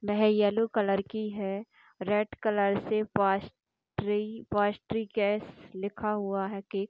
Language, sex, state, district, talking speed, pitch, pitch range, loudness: Hindi, female, Rajasthan, Churu, 120 wpm, 205 Hz, 200-215 Hz, -30 LUFS